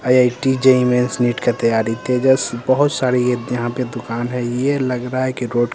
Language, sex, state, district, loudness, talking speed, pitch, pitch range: Hindi, male, Bihar, Patna, -18 LUFS, 220 wpm, 125 Hz, 120-130 Hz